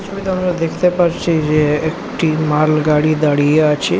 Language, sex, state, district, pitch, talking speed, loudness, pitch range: Bengali, male, West Bengal, Jhargram, 155 Hz, 165 wpm, -15 LUFS, 150-175 Hz